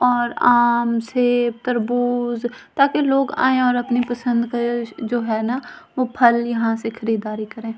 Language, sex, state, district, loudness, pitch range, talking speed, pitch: Hindi, female, Delhi, New Delhi, -20 LUFS, 230-245 Hz, 160 wpm, 240 Hz